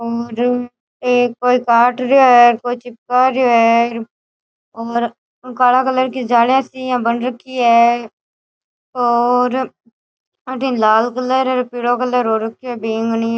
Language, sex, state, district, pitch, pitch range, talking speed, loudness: Rajasthani, female, Rajasthan, Churu, 245 Hz, 235-255 Hz, 145 wpm, -15 LUFS